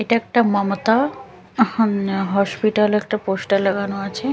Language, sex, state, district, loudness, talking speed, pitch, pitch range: Bengali, female, Chhattisgarh, Raipur, -19 LUFS, 125 wpm, 210 Hz, 200-225 Hz